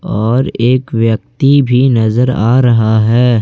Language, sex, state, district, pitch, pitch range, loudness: Hindi, male, Jharkhand, Ranchi, 120 Hz, 115-130 Hz, -11 LUFS